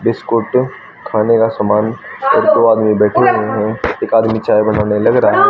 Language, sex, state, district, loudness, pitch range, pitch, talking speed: Hindi, male, Haryana, Rohtak, -13 LUFS, 105-125 Hz, 110 Hz, 185 wpm